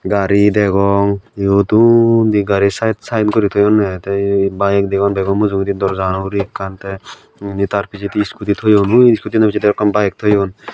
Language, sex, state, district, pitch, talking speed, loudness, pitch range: Chakma, male, Tripura, Dhalai, 100 Hz, 175 wpm, -14 LUFS, 100-105 Hz